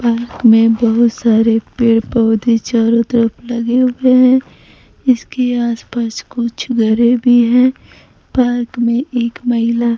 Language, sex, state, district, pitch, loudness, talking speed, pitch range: Hindi, female, Bihar, Kaimur, 235 Hz, -14 LUFS, 130 wpm, 230-245 Hz